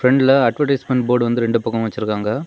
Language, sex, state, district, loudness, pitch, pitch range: Tamil, male, Tamil Nadu, Kanyakumari, -17 LUFS, 120 Hz, 115-135 Hz